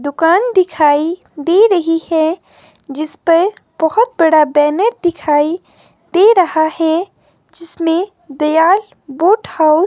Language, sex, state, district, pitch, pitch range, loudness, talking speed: Hindi, female, Himachal Pradesh, Shimla, 330 Hz, 310-370 Hz, -13 LUFS, 110 wpm